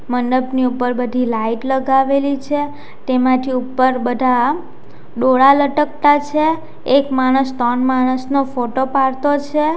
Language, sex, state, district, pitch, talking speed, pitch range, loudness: Gujarati, female, Gujarat, Valsad, 260 Hz, 125 wpm, 255-280 Hz, -16 LUFS